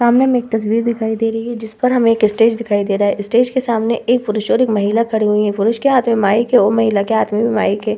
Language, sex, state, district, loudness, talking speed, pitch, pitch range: Hindi, female, Uttar Pradesh, Budaun, -15 LUFS, 315 wpm, 225 Hz, 215-235 Hz